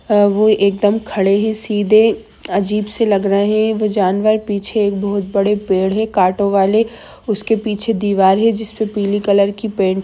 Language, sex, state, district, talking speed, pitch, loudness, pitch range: Hindi, female, Jharkhand, Sahebganj, 190 wpm, 205 Hz, -15 LUFS, 200-215 Hz